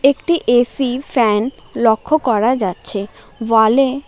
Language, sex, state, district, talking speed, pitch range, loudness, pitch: Bengali, female, West Bengal, Alipurduar, 105 wpm, 220-270 Hz, -16 LUFS, 240 Hz